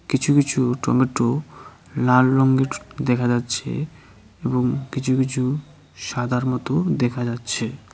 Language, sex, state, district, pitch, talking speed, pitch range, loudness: Bengali, male, West Bengal, Cooch Behar, 130 Hz, 105 wpm, 120-135 Hz, -21 LUFS